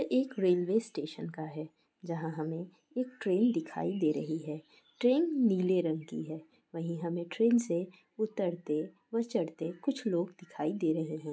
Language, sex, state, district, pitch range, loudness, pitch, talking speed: Hindi, female, Bihar, Sitamarhi, 160-225 Hz, -33 LUFS, 175 Hz, 165 wpm